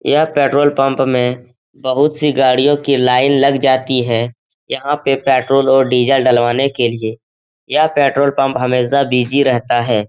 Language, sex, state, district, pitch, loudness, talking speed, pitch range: Hindi, male, Bihar, Jahanabad, 130 Hz, -14 LUFS, 160 wpm, 125-140 Hz